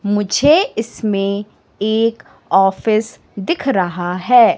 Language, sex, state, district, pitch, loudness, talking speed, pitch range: Hindi, female, Madhya Pradesh, Katni, 215 Hz, -16 LUFS, 90 wpm, 195-245 Hz